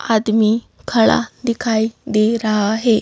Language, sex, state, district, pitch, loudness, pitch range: Hindi, female, Madhya Pradesh, Bhopal, 220 Hz, -17 LUFS, 215-230 Hz